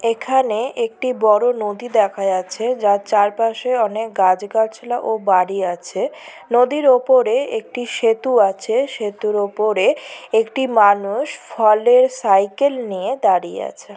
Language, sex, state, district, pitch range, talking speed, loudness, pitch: Bengali, female, West Bengal, Purulia, 205-255 Hz, 115 wpm, -17 LUFS, 225 Hz